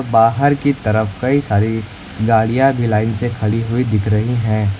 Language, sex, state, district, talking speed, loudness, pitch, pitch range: Hindi, male, Uttar Pradesh, Lucknow, 175 wpm, -16 LUFS, 115 Hz, 110-125 Hz